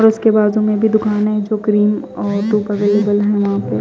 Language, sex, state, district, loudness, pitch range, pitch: Hindi, female, Odisha, Khordha, -15 LUFS, 205-215 Hz, 210 Hz